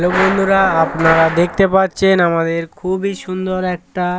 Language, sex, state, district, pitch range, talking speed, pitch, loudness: Bengali, male, West Bengal, Paschim Medinipur, 165-190 Hz, 130 wpm, 180 Hz, -15 LUFS